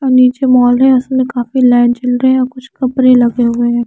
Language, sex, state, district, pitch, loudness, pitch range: Hindi, female, Chandigarh, Chandigarh, 250 Hz, -11 LUFS, 245-260 Hz